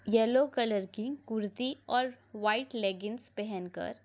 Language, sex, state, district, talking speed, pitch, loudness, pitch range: Hindi, female, Maharashtra, Pune, 135 wpm, 225 Hz, -32 LUFS, 205-250 Hz